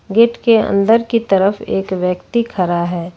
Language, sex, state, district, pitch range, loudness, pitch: Hindi, female, Jharkhand, Ranchi, 180-230 Hz, -15 LUFS, 200 Hz